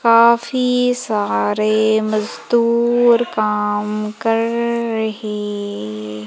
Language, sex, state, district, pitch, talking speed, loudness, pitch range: Hindi, female, Madhya Pradesh, Umaria, 220 Hz, 55 wpm, -17 LUFS, 210-235 Hz